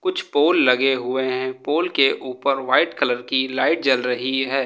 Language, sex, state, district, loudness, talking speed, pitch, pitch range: Hindi, male, Uttar Pradesh, Lucknow, -20 LUFS, 190 wpm, 130 Hz, 130-135 Hz